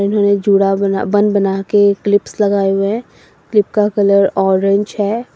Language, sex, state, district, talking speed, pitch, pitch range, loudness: Hindi, female, Assam, Sonitpur, 155 wpm, 200 Hz, 195-210 Hz, -14 LUFS